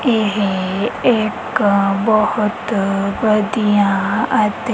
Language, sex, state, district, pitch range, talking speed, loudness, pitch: Punjabi, female, Punjab, Kapurthala, 200-220 Hz, 65 wpm, -16 LUFS, 210 Hz